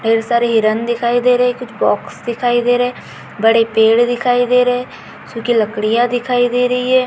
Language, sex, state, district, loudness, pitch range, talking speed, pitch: Hindi, female, Maharashtra, Pune, -15 LUFS, 230-245 Hz, 185 wpm, 240 Hz